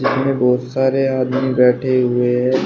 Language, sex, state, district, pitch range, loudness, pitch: Hindi, male, Uttar Pradesh, Shamli, 125-130 Hz, -16 LUFS, 130 Hz